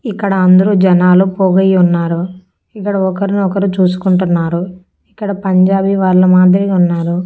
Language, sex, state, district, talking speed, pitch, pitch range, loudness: Telugu, female, Andhra Pradesh, Annamaya, 105 wpm, 185 Hz, 180-195 Hz, -12 LUFS